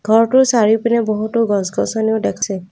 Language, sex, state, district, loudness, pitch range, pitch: Assamese, female, Assam, Kamrup Metropolitan, -16 LUFS, 215-230 Hz, 220 Hz